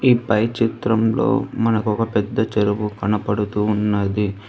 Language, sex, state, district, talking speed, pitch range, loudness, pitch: Telugu, female, Telangana, Hyderabad, 120 wpm, 105-115 Hz, -20 LUFS, 105 Hz